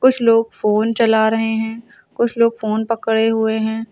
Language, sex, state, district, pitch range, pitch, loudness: Hindi, female, Uttar Pradesh, Lucknow, 220-230 Hz, 225 Hz, -17 LUFS